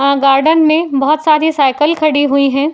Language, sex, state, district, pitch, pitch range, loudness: Hindi, female, Uttar Pradesh, Jyotiba Phule Nagar, 290 Hz, 275-310 Hz, -11 LUFS